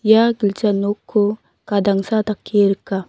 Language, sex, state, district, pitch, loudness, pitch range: Garo, female, Meghalaya, North Garo Hills, 205 Hz, -18 LUFS, 200-215 Hz